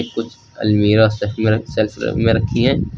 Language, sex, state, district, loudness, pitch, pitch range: Hindi, male, Uttar Pradesh, Lucknow, -17 LUFS, 110 Hz, 105-115 Hz